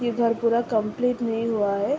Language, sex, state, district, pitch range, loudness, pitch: Hindi, female, Uttar Pradesh, Hamirpur, 220-240 Hz, -24 LUFS, 230 Hz